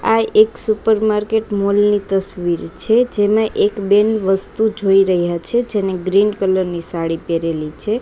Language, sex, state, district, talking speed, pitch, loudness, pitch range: Gujarati, female, Gujarat, Gandhinagar, 165 wpm, 205 Hz, -17 LUFS, 185-215 Hz